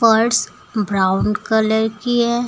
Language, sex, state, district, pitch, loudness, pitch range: Hindi, female, Uttar Pradesh, Lucknow, 220 Hz, -18 LUFS, 210-235 Hz